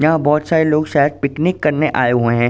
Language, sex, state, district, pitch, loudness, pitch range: Hindi, male, Uttar Pradesh, Ghazipur, 150 Hz, -16 LUFS, 140-155 Hz